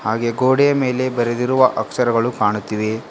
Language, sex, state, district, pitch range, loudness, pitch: Kannada, female, Karnataka, Bidar, 110-130 Hz, -18 LUFS, 120 Hz